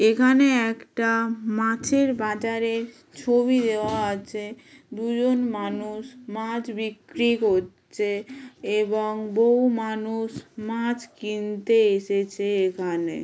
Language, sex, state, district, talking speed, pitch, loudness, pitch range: Bengali, female, West Bengal, Kolkata, 85 wpm, 225 Hz, -24 LUFS, 210-235 Hz